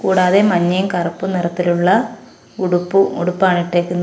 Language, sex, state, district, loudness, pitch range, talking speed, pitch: Malayalam, female, Kerala, Kollam, -16 LUFS, 175-195 Hz, 105 wpm, 180 Hz